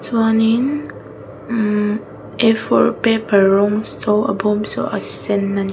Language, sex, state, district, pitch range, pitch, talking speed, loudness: Mizo, female, Mizoram, Aizawl, 205-225 Hz, 210 Hz, 135 wpm, -17 LUFS